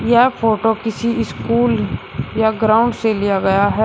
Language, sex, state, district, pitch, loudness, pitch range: Hindi, male, Uttar Pradesh, Shamli, 225 Hz, -17 LUFS, 215-230 Hz